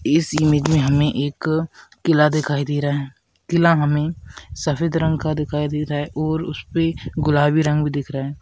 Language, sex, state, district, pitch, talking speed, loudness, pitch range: Hindi, male, Rajasthan, Churu, 150 Hz, 190 wpm, -20 LUFS, 145-160 Hz